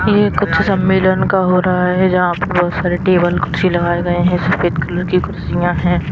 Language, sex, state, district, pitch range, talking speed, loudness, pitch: Hindi, female, Himachal Pradesh, Shimla, 175-185 Hz, 205 wpm, -15 LUFS, 180 Hz